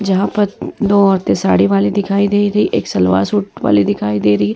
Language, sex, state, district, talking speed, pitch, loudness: Hindi, female, Bihar, Vaishali, 225 wpm, 180 Hz, -14 LUFS